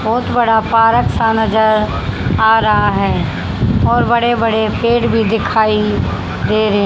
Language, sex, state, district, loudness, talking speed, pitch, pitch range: Hindi, female, Haryana, Rohtak, -14 LUFS, 140 wpm, 220 Hz, 215-225 Hz